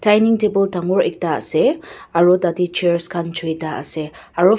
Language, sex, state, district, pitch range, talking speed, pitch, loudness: Nagamese, female, Nagaland, Dimapur, 170-210 Hz, 155 wpm, 180 Hz, -18 LUFS